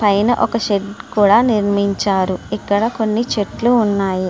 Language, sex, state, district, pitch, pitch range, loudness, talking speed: Telugu, female, Andhra Pradesh, Srikakulam, 205 Hz, 200-225 Hz, -16 LUFS, 125 wpm